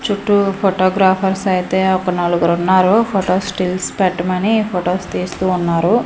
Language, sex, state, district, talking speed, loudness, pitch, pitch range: Telugu, female, Andhra Pradesh, Manyam, 120 wpm, -16 LUFS, 185 Hz, 180-195 Hz